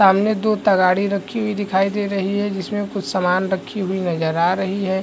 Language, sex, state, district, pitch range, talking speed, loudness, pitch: Hindi, male, Chhattisgarh, Rajnandgaon, 190-205 Hz, 215 wpm, -20 LUFS, 195 Hz